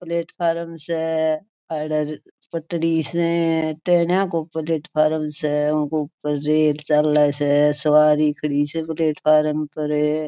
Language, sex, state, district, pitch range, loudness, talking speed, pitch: Marwari, female, Rajasthan, Churu, 150-165 Hz, -21 LUFS, 100 wpm, 155 Hz